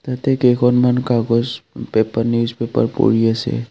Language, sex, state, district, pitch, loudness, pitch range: Assamese, male, Assam, Kamrup Metropolitan, 120 Hz, -17 LUFS, 115-125 Hz